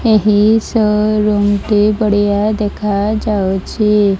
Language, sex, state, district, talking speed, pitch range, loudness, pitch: Odia, female, Odisha, Malkangiri, 115 wpm, 205-215 Hz, -13 LUFS, 210 Hz